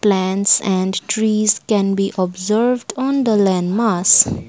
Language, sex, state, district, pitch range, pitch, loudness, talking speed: English, female, Assam, Kamrup Metropolitan, 190-220 Hz, 205 Hz, -16 LUFS, 135 wpm